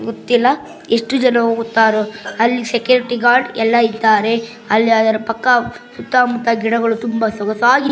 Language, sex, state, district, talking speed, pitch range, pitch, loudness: Kannada, female, Karnataka, Bangalore, 120 wpm, 225-245 Hz, 230 Hz, -15 LUFS